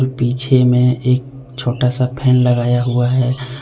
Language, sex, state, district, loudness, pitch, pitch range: Hindi, male, Jharkhand, Deoghar, -15 LUFS, 125 Hz, 125-130 Hz